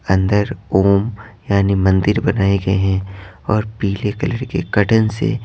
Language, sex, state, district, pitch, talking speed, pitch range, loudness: Hindi, male, Bihar, Patna, 100 Hz, 145 wpm, 95-110 Hz, -17 LUFS